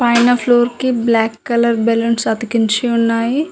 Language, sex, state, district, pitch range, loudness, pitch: Telugu, female, Telangana, Mahabubabad, 230-245 Hz, -15 LUFS, 235 Hz